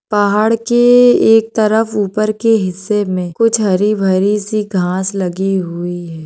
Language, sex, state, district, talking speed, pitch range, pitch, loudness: Hindi, female, Maharashtra, Sindhudurg, 155 wpm, 185-220 Hz, 205 Hz, -14 LUFS